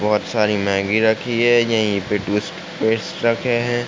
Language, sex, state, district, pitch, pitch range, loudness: Hindi, male, Uttar Pradesh, Ghazipur, 110 Hz, 105-120 Hz, -19 LUFS